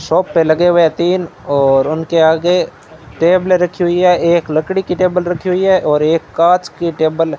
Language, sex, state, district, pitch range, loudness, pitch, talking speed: Hindi, male, Rajasthan, Bikaner, 160-180 Hz, -13 LUFS, 170 Hz, 210 wpm